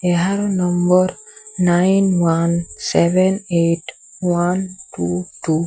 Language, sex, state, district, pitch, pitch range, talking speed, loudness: Odia, male, Odisha, Sambalpur, 175 Hz, 170-185 Hz, 105 wpm, -18 LUFS